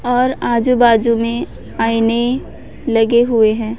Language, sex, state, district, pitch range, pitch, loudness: Hindi, female, Chhattisgarh, Raipur, 225-245 Hz, 235 Hz, -15 LUFS